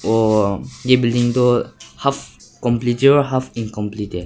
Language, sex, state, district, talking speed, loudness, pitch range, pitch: Hindi, male, Nagaland, Kohima, 155 wpm, -18 LUFS, 105-125 Hz, 120 Hz